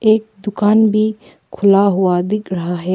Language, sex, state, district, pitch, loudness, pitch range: Hindi, female, Arunachal Pradesh, Papum Pare, 205 Hz, -15 LUFS, 185-215 Hz